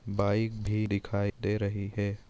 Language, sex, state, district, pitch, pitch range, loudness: Hindi, male, Maharashtra, Dhule, 100 Hz, 100-105 Hz, -31 LUFS